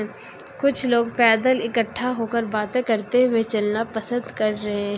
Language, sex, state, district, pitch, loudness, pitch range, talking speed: Hindi, female, Uttar Pradesh, Lucknow, 230 Hz, -21 LUFS, 215-245 Hz, 145 wpm